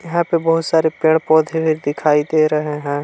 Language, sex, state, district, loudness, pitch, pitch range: Hindi, male, Jharkhand, Palamu, -16 LUFS, 160 Hz, 150-165 Hz